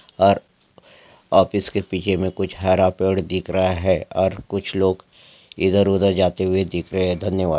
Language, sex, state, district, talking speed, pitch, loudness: Angika, male, Bihar, Madhepura, 165 wpm, 95 Hz, -20 LUFS